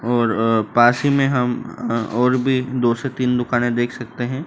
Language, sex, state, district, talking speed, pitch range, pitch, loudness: Hindi, male, Madhya Pradesh, Dhar, 200 wpm, 120-125 Hz, 120 Hz, -19 LUFS